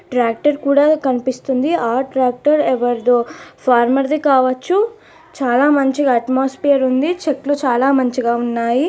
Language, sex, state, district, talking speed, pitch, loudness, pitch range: Telugu, female, Telangana, Nalgonda, 115 wpm, 265 Hz, -16 LUFS, 250-290 Hz